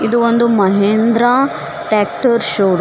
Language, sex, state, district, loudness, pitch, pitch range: Kannada, female, Karnataka, Koppal, -13 LUFS, 230 Hz, 205-235 Hz